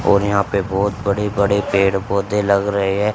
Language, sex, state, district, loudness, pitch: Hindi, male, Haryana, Charkhi Dadri, -18 LUFS, 100 Hz